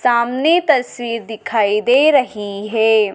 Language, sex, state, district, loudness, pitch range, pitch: Hindi, female, Madhya Pradesh, Dhar, -16 LUFS, 210-255 Hz, 230 Hz